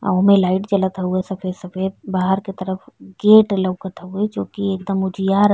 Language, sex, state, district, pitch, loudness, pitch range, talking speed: Bhojpuri, female, Uttar Pradesh, Ghazipur, 190 Hz, -19 LUFS, 185-200 Hz, 195 wpm